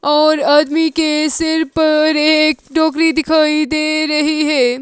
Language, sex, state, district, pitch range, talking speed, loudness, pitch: Hindi, female, Himachal Pradesh, Shimla, 300-315 Hz, 135 wpm, -14 LUFS, 310 Hz